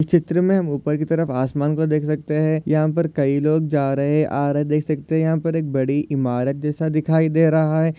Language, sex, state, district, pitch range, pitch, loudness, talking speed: Hindi, male, Maharashtra, Solapur, 145-160 Hz, 155 Hz, -20 LUFS, 240 wpm